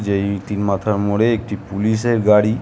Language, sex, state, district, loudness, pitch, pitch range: Bengali, male, West Bengal, Kolkata, -18 LUFS, 105 Hz, 100-110 Hz